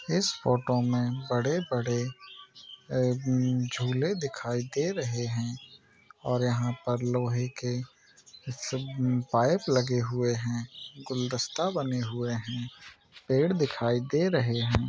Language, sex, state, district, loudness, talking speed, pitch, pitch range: Hindi, male, Maharashtra, Nagpur, -29 LUFS, 120 wpm, 125 Hz, 120-130 Hz